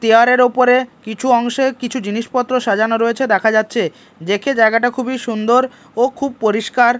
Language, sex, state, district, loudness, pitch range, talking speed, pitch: Bengali, male, Odisha, Malkangiri, -16 LUFS, 220-255 Hz, 145 wpm, 240 Hz